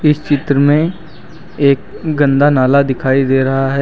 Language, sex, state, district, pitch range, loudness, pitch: Hindi, male, Uttar Pradesh, Lucknow, 135-150 Hz, -13 LUFS, 140 Hz